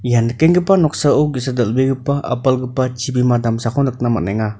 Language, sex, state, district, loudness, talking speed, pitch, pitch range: Garo, male, Meghalaya, North Garo Hills, -16 LUFS, 130 wpm, 125 Hz, 120-140 Hz